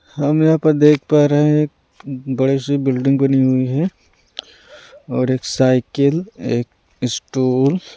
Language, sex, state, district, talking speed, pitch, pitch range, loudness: Hindi, male, Punjab, Pathankot, 150 wpm, 135 Hz, 130-150 Hz, -17 LUFS